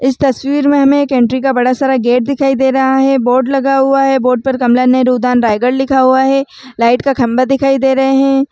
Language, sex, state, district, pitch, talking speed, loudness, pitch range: Chhattisgarhi, female, Chhattisgarh, Raigarh, 265 Hz, 240 wpm, -11 LUFS, 255-270 Hz